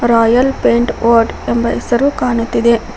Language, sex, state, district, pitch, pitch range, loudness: Kannada, female, Karnataka, Koppal, 235 Hz, 230-240 Hz, -13 LUFS